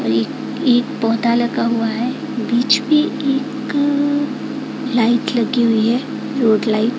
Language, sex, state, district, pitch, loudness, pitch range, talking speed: Hindi, female, Odisha, Khordha, 245 Hz, -17 LUFS, 230-280 Hz, 135 wpm